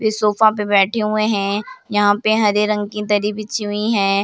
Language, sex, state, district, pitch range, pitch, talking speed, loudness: Hindi, female, Bihar, Samastipur, 205-215 Hz, 210 Hz, 210 wpm, -17 LUFS